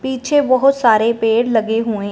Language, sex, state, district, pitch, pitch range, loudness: Hindi, female, Punjab, Fazilka, 230 Hz, 225-260 Hz, -15 LUFS